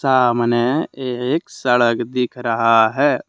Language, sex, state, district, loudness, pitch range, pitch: Hindi, male, Jharkhand, Deoghar, -17 LUFS, 120-130 Hz, 125 Hz